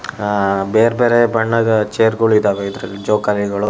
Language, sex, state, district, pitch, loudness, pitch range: Kannada, male, Karnataka, Shimoga, 105 Hz, -15 LUFS, 100-115 Hz